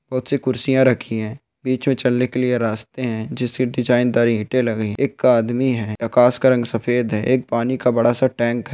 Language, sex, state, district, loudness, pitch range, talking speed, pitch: Hindi, male, Rajasthan, Nagaur, -19 LUFS, 115-130 Hz, 225 wpm, 125 Hz